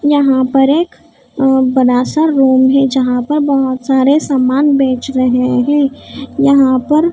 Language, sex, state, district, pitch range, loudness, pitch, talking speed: Hindi, female, Maharashtra, Mumbai Suburban, 260-285 Hz, -12 LUFS, 270 Hz, 150 wpm